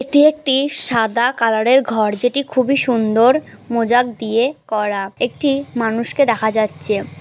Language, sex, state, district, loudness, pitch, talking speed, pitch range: Bengali, female, West Bengal, North 24 Parganas, -16 LUFS, 235 Hz, 135 wpm, 220-270 Hz